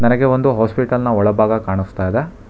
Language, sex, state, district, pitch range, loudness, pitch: Kannada, male, Karnataka, Bangalore, 105-130 Hz, -16 LUFS, 115 Hz